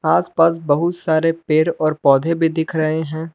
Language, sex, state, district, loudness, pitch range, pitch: Hindi, male, Jharkhand, Palamu, -17 LUFS, 155-165 Hz, 160 Hz